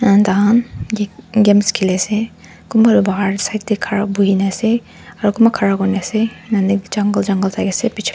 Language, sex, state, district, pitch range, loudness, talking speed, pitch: Nagamese, female, Nagaland, Dimapur, 195-220 Hz, -16 LUFS, 185 wpm, 205 Hz